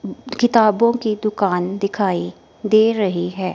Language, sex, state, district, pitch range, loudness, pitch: Hindi, female, Himachal Pradesh, Shimla, 185-220 Hz, -18 LUFS, 205 Hz